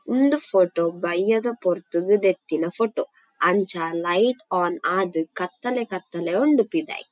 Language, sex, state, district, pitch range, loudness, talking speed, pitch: Tulu, female, Karnataka, Dakshina Kannada, 175-230 Hz, -23 LUFS, 120 wpm, 185 Hz